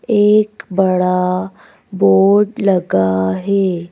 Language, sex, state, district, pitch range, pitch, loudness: Hindi, female, Madhya Pradesh, Bhopal, 175-205 Hz, 190 Hz, -14 LUFS